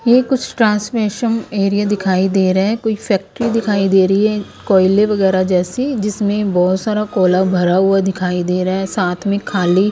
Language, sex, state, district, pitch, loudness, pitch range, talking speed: Hindi, female, Punjab, Kapurthala, 200 Hz, -15 LUFS, 185-215 Hz, 180 wpm